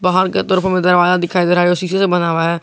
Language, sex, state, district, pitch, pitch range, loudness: Hindi, male, Jharkhand, Garhwa, 180 Hz, 175-185 Hz, -14 LUFS